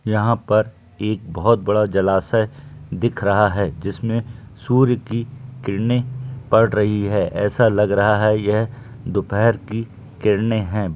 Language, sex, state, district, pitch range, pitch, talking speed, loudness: Hindi, male, Bihar, Gaya, 105-120 Hz, 110 Hz, 140 wpm, -19 LUFS